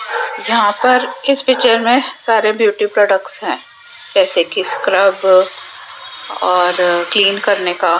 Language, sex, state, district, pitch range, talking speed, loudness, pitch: Hindi, female, Rajasthan, Jaipur, 190-250 Hz, 130 wpm, -14 LUFS, 205 Hz